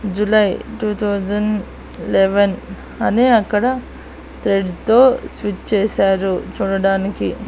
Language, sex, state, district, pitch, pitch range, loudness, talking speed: Telugu, female, Andhra Pradesh, Annamaya, 205 Hz, 195-215 Hz, -17 LUFS, 90 wpm